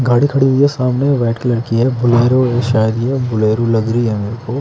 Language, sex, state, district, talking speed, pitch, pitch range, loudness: Hindi, male, Bihar, Kaimur, 235 wpm, 120 Hz, 115-130 Hz, -14 LUFS